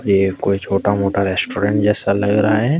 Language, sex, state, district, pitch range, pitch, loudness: Hindi, male, Jharkhand, Deoghar, 100-105 Hz, 100 Hz, -17 LUFS